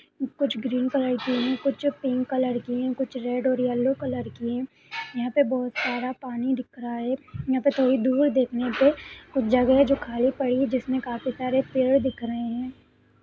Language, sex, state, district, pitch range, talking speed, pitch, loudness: Hindi, female, Bihar, Begusarai, 245-265 Hz, 200 wpm, 255 Hz, -25 LUFS